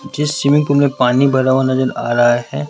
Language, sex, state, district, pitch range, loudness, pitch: Hindi, male, Rajasthan, Jaipur, 125-140 Hz, -14 LUFS, 130 Hz